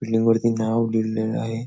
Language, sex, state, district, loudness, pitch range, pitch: Marathi, male, Maharashtra, Nagpur, -22 LUFS, 110-115 Hz, 115 Hz